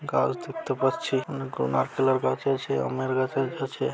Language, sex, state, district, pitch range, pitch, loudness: Bengali, male, West Bengal, Malda, 130-135 Hz, 130 Hz, -27 LUFS